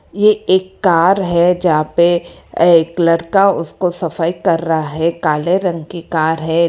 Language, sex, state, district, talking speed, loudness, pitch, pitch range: Hindi, female, Karnataka, Bangalore, 160 wpm, -14 LUFS, 170 Hz, 165-180 Hz